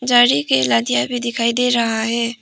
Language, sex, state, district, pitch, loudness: Hindi, female, Arunachal Pradesh, Papum Pare, 230 Hz, -16 LUFS